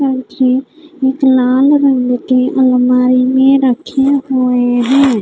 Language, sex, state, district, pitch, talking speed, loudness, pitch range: Hindi, female, Odisha, Khordha, 260 Hz, 105 wpm, -12 LUFS, 255-270 Hz